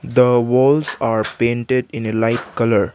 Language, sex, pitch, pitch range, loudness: English, male, 120 Hz, 115-125 Hz, -17 LUFS